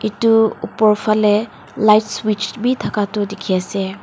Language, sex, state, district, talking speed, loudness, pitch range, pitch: Nagamese, female, Nagaland, Dimapur, 150 wpm, -17 LUFS, 205-220 Hz, 210 Hz